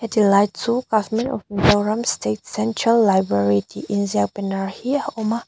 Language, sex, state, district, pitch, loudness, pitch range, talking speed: Mizo, female, Mizoram, Aizawl, 210 Hz, -20 LUFS, 195-230 Hz, 185 wpm